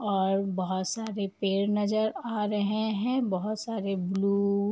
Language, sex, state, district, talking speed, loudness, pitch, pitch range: Hindi, female, Uttar Pradesh, Varanasi, 150 wpm, -29 LUFS, 205 Hz, 195-215 Hz